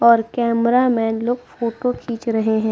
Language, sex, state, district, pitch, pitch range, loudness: Hindi, female, Uttar Pradesh, Budaun, 235 Hz, 225-245 Hz, -19 LUFS